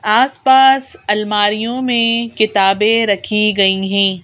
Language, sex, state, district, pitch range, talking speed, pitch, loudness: Hindi, female, Madhya Pradesh, Bhopal, 200-235 Hz, 100 wpm, 215 Hz, -14 LUFS